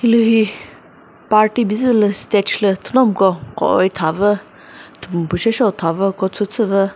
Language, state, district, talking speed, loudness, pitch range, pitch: Chakhesang, Nagaland, Dimapur, 140 wpm, -16 LUFS, 190-225 Hz, 205 Hz